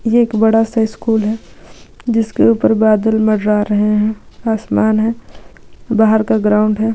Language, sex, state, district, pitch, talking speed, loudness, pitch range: Hindi, female, Maharashtra, Aurangabad, 220 Hz, 155 wpm, -14 LUFS, 215-225 Hz